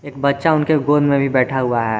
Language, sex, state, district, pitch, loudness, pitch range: Hindi, male, Jharkhand, Garhwa, 140 Hz, -17 LUFS, 130-150 Hz